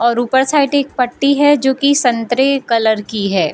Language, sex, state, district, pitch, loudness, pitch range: Hindi, female, Bihar, Gopalganj, 260 Hz, -14 LUFS, 235-280 Hz